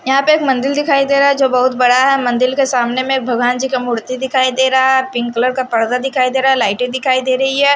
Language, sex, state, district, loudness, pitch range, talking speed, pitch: Hindi, female, Haryana, Charkhi Dadri, -14 LUFS, 250-270 Hz, 285 wpm, 260 Hz